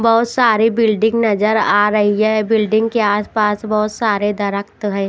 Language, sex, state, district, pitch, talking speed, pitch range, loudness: Hindi, female, Haryana, Jhajjar, 215 Hz, 165 wpm, 205-225 Hz, -15 LUFS